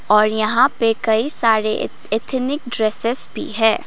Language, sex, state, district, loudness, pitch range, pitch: Hindi, female, Sikkim, Gangtok, -18 LUFS, 215-250 Hz, 225 Hz